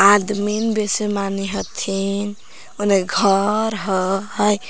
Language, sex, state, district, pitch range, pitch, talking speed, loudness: Magahi, female, Jharkhand, Palamu, 195-210 Hz, 205 Hz, 100 wpm, -20 LUFS